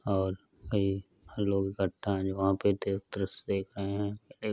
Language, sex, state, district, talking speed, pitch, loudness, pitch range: Hindi, male, Uttar Pradesh, Budaun, 170 wpm, 95 Hz, -32 LUFS, 95-100 Hz